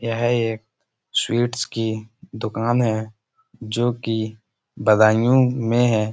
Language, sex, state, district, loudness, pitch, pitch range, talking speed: Hindi, male, Uttar Pradesh, Budaun, -21 LUFS, 115 Hz, 110-120 Hz, 110 wpm